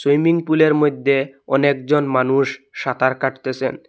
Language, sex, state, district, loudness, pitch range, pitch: Bengali, male, Assam, Hailakandi, -18 LUFS, 130-150 Hz, 135 Hz